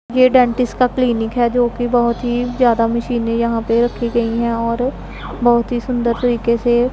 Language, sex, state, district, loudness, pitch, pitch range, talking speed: Hindi, female, Punjab, Pathankot, -16 LUFS, 240 Hz, 235-245 Hz, 180 wpm